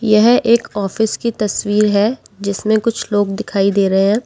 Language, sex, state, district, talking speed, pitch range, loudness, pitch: Hindi, female, Delhi, New Delhi, 180 wpm, 200-225 Hz, -16 LUFS, 210 Hz